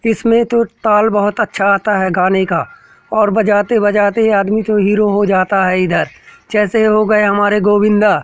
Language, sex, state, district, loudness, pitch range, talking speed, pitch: Hindi, male, Madhya Pradesh, Katni, -13 LUFS, 200-215 Hz, 175 wpm, 210 Hz